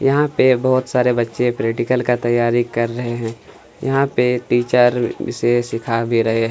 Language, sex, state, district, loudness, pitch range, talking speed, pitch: Hindi, male, Chhattisgarh, Kabirdham, -18 LUFS, 115-125 Hz, 175 wpm, 120 Hz